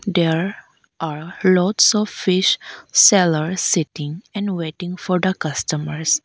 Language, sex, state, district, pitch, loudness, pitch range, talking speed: English, female, Arunachal Pradesh, Lower Dibang Valley, 175 Hz, -18 LUFS, 160-190 Hz, 115 wpm